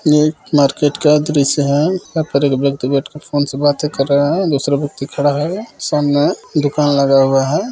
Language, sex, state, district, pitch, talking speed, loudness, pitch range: Hindi, male, Bihar, Jamui, 145 Hz, 200 wpm, -15 LUFS, 140-150 Hz